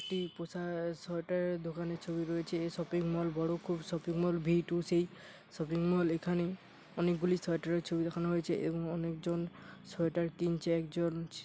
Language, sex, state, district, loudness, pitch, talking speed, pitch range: Bengali, male, West Bengal, Paschim Medinipur, -35 LUFS, 170 Hz, 140 wpm, 170-175 Hz